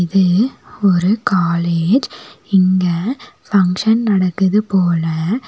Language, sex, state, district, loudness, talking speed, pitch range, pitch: Tamil, female, Tamil Nadu, Nilgiris, -15 LUFS, 75 wpm, 175-215 Hz, 190 Hz